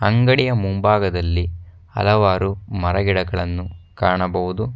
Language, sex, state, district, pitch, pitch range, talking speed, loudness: Kannada, male, Karnataka, Bangalore, 95 Hz, 90-105 Hz, 75 wpm, -19 LUFS